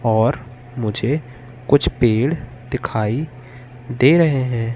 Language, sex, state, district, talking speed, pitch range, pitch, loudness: Hindi, male, Madhya Pradesh, Katni, 100 wpm, 120-130 Hz, 125 Hz, -19 LUFS